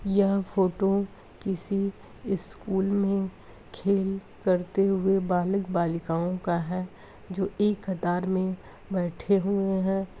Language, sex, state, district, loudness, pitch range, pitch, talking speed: Hindi, female, Uttar Pradesh, Deoria, -27 LUFS, 185-195 Hz, 190 Hz, 110 wpm